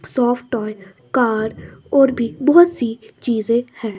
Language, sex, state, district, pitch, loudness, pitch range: Hindi, female, Bihar, West Champaran, 235 Hz, -18 LUFS, 220-255 Hz